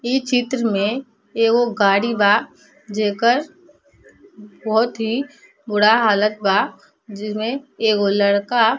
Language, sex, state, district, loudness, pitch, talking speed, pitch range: Bhojpuri, female, Bihar, East Champaran, -18 LUFS, 225 Hz, 110 wpm, 210-245 Hz